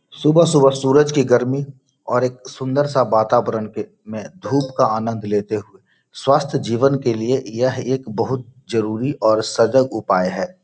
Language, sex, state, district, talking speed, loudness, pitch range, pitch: Hindi, male, Bihar, Gopalganj, 165 wpm, -18 LUFS, 110-140 Hz, 130 Hz